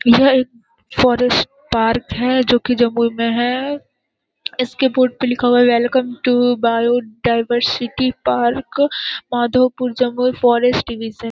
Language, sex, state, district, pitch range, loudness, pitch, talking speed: Hindi, female, Bihar, Jamui, 240-255 Hz, -16 LUFS, 245 Hz, 140 wpm